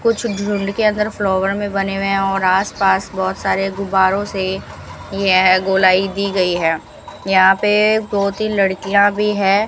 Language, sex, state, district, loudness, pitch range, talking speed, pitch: Hindi, female, Rajasthan, Bikaner, -16 LUFS, 190-205 Hz, 160 wpm, 195 Hz